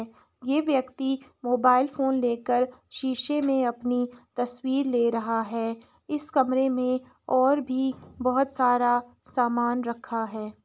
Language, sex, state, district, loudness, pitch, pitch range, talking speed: Hindi, female, Uttar Pradesh, Etah, -26 LUFS, 250 Hz, 240-265 Hz, 125 wpm